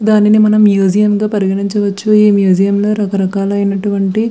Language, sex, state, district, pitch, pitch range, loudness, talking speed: Telugu, female, Andhra Pradesh, Visakhapatnam, 205 Hz, 195-210 Hz, -12 LUFS, 195 wpm